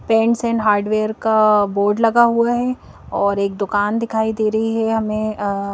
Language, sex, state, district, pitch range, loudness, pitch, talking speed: Hindi, female, Madhya Pradesh, Bhopal, 205-225 Hz, -18 LUFS, 215 Hz, 180 wpm